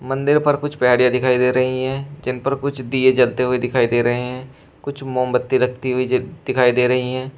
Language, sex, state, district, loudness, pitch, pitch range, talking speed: Hindi, male, Uttar Pradesh, Shamli, -18 LUFS, 130 Hz, 125-135 Hz, 220 wpm